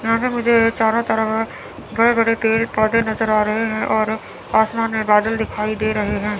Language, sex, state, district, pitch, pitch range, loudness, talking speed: Hindi, female, Chandigarh, Chandigarh, 220 Hz, 215-230 Hz, -18 LUFS, 205 wpm